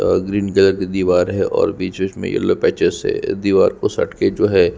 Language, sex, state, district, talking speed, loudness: Hindi, male, Chhattisgarh, Sukma, 215 wpm, -17 LUFS